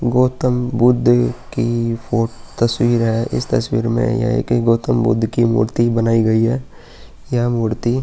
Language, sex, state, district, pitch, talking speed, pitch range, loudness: Hindi, male, Uttar Pradesh, Muzaffarnagar, 115 Hz, 165 wpm, 115-120 Hz, -17 LUFS